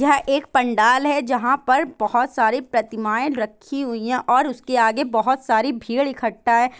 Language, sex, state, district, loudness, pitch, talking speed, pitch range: Hindi, female, Bihar, Saran, -20 LUFS, 250 Hz, 175 wpm, 230-275 Hz